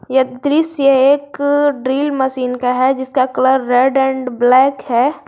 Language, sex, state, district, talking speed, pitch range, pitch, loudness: Hindi, female, Jharkhand, Garhwa, 160 wpm, 255-280 Hz, 265 Hz, -14 LUFS